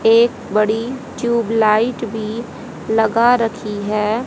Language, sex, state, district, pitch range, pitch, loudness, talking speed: Hindi, female, Haryana, Rohtak, 215-235 Hz, 225 Hz, -17 LUFS, 115 wpm